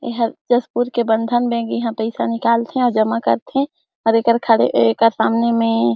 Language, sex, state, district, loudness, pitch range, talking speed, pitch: Chhattisgarhi, female, Chhattisgarh, Jashpur, -17 LUFS, 225-240 Hz, 190 wpm, 230 Hz